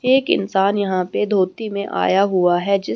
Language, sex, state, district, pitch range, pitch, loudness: Hindi, female, Haryana, Rohtak, 185-210 Hz, 200 Hz, -18 LUFS